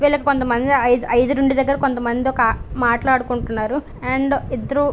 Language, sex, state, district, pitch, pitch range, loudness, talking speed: Telugu, female, Andhra Pradesh, Visakhapatnam, 260 Hz, 240-280 Hz, -18 LUFS, 135 wpm